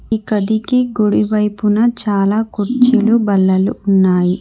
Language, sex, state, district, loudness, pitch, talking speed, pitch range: Telugu, female, Telangana, Hyderabad, -14 LUFS, 210 Hz, 110 wpm, 200-225 Hz